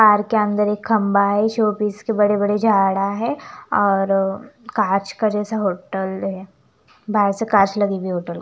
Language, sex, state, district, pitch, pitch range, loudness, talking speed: Hindi, female, Chandigarh, Chandigarh, 205 Hz, 195-210 Hz, -19 LUFS, 200 wpm